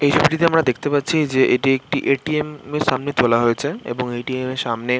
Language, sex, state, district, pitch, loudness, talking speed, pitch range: Bengali, male, West Bengal, Jhargram, 135 Hz, -19 LUFS, 205 wpm, 125-150 Hz